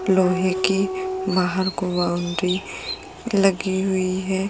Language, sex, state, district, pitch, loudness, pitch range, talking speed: Hindi, female, Uttar Pradesh, Jalaun, 185 Hz, -22 LUFS, 185-190 Hz, 105 wpm